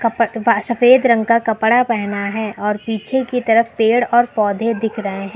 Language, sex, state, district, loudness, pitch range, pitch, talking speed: Hindi, female, Uttar Pradesh, Lucknow, -16 LUFS, 215-235 Hz, 230 Hz, 180 wpm